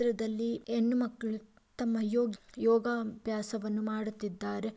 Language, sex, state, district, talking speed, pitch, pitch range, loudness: Kannada, female, Karnataka, Mysore, 125 wpm, 225 Hz, 215-235 Hz, -33 LUFS